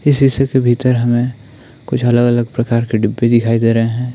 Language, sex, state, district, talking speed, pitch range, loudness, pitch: Hindi, male, Uttarakhand, Tehri Garhwal, 200 wpm, 115-125 Hz, -14 LUFS, 120 Hz